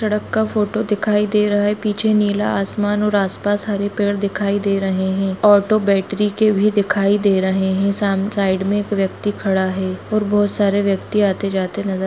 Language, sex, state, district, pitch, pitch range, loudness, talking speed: Hindi, female, Jharkhand, Jamtara, 205 Hz, 195-210 Hz, -18 LUFS, 200 wpm